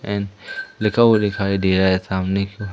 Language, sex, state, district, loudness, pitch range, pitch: Hindi, male, Madhya Pradesh, Umaria, -19 LUFS, 95-105 Hz, 100 Hz